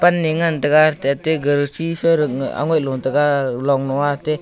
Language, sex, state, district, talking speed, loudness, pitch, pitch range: Wancho, male, Arunachal Pradesh, Longding, 150 wpm, -18 LUFS, 145 Hz, 140-160 Hz